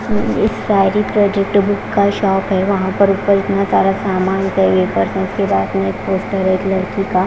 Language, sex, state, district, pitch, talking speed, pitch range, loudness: Hindi, female, Punjab, Fazilka, 195 Hz, 155 wpm, 190-200 Hz, -15 LUFS